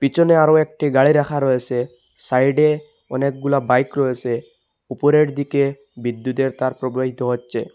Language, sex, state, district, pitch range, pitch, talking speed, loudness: Bengali, male, Assam, Hailakandi, 130-145 Hz, 135 Hz, 125 wpm, -19 LUFS